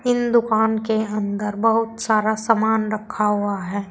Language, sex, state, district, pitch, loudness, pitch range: Hindi, female, Uttar Pradesh, Saharanpur, 220 Hz, -20 LUFS, 210-225 Hz